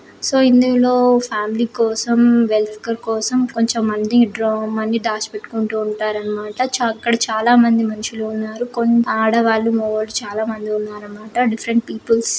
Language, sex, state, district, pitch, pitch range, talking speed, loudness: Telugu, female, Andhra Pradesh, Srikakulam, 225 Hz, 215-235 Hz, 115 wpm, -17 LUFS